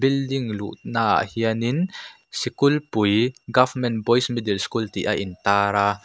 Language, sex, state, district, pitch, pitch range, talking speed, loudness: Mizo, male, Mizoram, Aizawl, 115 Hz, 100-125 Hz, 140 wpm, -22 LUFS